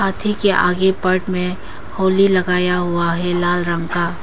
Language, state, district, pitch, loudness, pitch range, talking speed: Hindi, Arunachal Pradesh, Papum Pare, 180 Hz, -16 LUFS, 175-190 Hz, 170 wpm